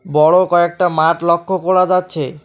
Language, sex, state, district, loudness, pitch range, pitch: Bengali, male, West Bengal, Alipurduar, -14 LUFS, 160-185 Hz, 175 Hz